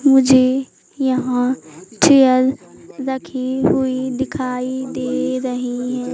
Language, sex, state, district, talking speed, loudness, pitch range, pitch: Hindi, female, Madhya Pradesh, Katni, 90 wpm, -18 LUFS, 255-265 Hz, 260 Hz